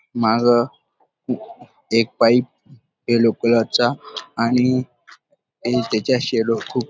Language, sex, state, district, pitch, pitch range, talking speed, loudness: Marathi, male, Maharashtra, Dhule, 120 Hz, 115-125 Hz, 80 wpm, -19 LUFS